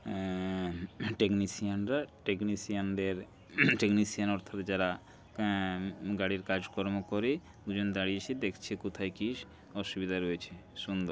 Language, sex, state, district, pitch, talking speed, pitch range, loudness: Bengali, male, West Bengal, Jhargram, 100 Hz, 120 wpm, 95-105 Hz, -34 LUFS